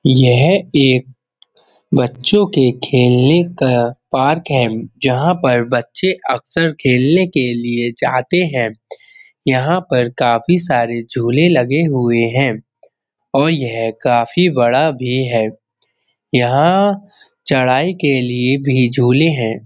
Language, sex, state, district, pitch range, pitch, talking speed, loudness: Hindi, male, Uttar Pradesh, Budaun, 120-160 Hz, 130 Hz, 115 wpm, -15 LUFS